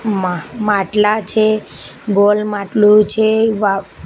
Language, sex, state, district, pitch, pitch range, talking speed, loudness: Gujarati, female, Gujarat, Gandhinagar, 210 Hz, 200-215 Hz, 105 wpm, -14 LUFS